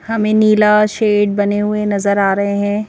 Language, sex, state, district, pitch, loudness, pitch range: Hindi, female, Madhya Pradesh, Bhopal, 210 Hz, -14 LUFS, 200-210 Hz